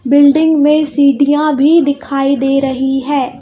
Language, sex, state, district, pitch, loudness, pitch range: Hindi, female, Madhya Pradesh, Bhopal, 285 Hz, -11 LUFS, 275-300 Hz